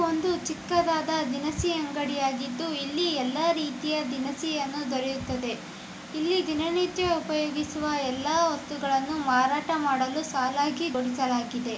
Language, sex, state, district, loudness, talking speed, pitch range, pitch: Kannada, female, Karnataka, Dharwad, -27 LUFS, 100 wpm, 265-320 Hz, 295 Hz